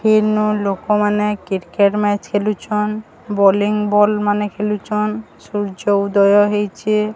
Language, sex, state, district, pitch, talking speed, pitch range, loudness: Odia, female, Odisha, Sambalpur, 210 Hz, 100 wpm, 205-210 Hz, -17 LUFS